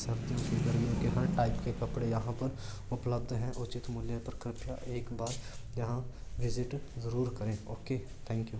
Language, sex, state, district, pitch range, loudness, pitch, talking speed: Marwari, male, Rajasthan, Churu, 115-125 Hz, -36 LUFS, 120 Hz, 175 wpm